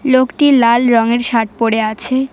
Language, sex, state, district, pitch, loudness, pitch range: Bengali, female, West Bengal, Cooch Behar, 235 Hz, -13 LUFS, 230-260 Hz